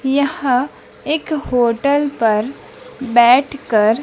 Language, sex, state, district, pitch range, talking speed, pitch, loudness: Hindi, female, Madhya Pradesh, Dhar, 240-290 Hz, 75 wpm, 270 Hz, -16 LUFS